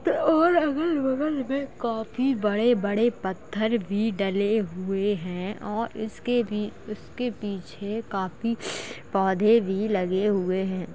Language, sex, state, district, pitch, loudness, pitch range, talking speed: Hindi, female, Uttar Pradesh, Jalaun, 215 Hz, -26 LUFS, 195-240 Hz, 115 wpm